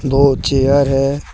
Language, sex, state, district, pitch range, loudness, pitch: Hindi, male, Jharkhand, Deoghar, 135-140 Hz, -14 LUFS, 135 Hz